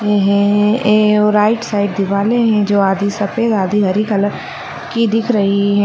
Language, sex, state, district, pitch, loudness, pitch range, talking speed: Hindi, female, Chhattisgarh, Bastar, 205 Hz, -14 LUFS, 200-215 Hz, 185 wpm